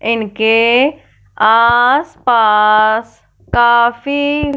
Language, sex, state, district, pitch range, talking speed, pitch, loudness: Hindi, female, Punjab, Fazilka, 220-260 Hz, 40 wpm, 235 Hz, -12 LUFS